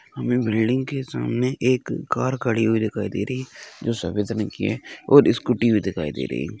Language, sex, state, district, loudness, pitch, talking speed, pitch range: Hindi, male, Uttarakhand, Uttarkashi, -22 LUFS, 115 Hz, 220 wpm, 105-125 Hz